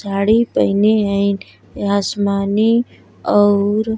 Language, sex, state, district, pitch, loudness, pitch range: Bhojpuri, female, Uttar Pradesh, Gorakhpur, 205 Hz, -16 LUFS, 200-215 Hz